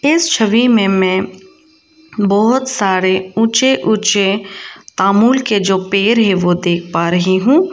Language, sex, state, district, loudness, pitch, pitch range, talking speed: Hindi, female, Arunachal Pradesh, Lower Dibang Valley, -13 LUFS, 210 Hz, 190-260 Hz, 145 wpm